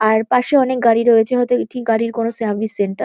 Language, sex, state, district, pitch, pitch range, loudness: Bengali, female, West Bengal, Kolkata, 230 Hz, 220-245 Hz, -16 LUFS